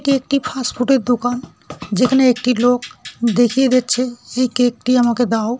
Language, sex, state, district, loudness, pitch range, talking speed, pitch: Bengali, male, West Bengal, North 24 Parganas, -16 LUFS, 240-255 Hz, 180 wpm, 245 Hz